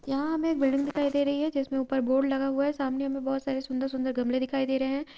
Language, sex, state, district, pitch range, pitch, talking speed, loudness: Maithili, female, Bihar, Purnia, 265-280 Hz, 270 Hz, 280 wpm, -28 LUFS